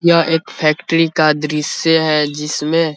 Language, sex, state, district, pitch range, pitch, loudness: Hindi, male, Bihar, Vaishali, 150-165 Hz, 155 Hz, -15 LUFS